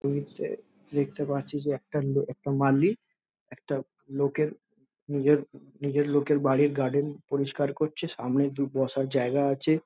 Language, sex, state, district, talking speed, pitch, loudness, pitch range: Bengali, male, West Bengal, Jhargram, 135 wpm, 140 Hz, -28 LUFS, 135-145 Hz